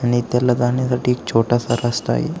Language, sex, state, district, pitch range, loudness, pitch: Marathi, male, Maharashtra, Aurangabad, 120-125 Hz, -19 LUFS, 120 Hz